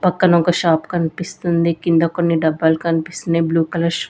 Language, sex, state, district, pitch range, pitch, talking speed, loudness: Telugu, female, Andhra Pradesh, Sri Satya Sai, 165-175 Hz, 170 Hz, 175 wpm, -17 LUFS